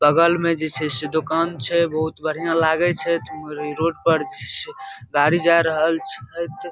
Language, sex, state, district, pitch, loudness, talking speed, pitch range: Maithili, male, Bihar, Darbhanga, 160 Hz, -20 LUFS, 160 wpm, 155-170 Hz